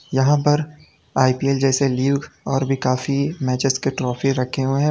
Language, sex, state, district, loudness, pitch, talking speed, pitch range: Hindi, male, Uttar Pradesh, Lalitpur, -20 LUFS, 135 Hz, 170 wpm, 130-140 Hz